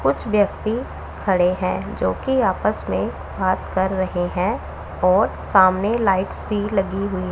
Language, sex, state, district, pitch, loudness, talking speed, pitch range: Hindi, female, Punjab, Pathankot, 190 Hz, -21 LUFS, 140 wpm, 185-210 Hz